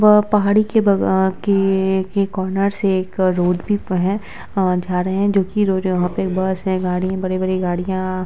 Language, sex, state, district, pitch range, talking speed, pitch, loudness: Hindi, female, Bihar, Vaishali, 185-200 Hz, 220 wpm, 190 Hz, -18 LUFS